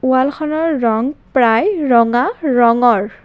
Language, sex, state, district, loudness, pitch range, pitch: Assamese, female, Assam, Kamrup Metropolitan, -14 LUFS, 235-290 Hz, 250 Hz